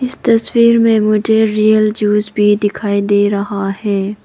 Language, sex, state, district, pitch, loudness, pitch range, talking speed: Hindi, female, Arunachal Pradesh, Papum Pare, 210 Hz, -13 LUFS, 205-220 Hz, 155 wpm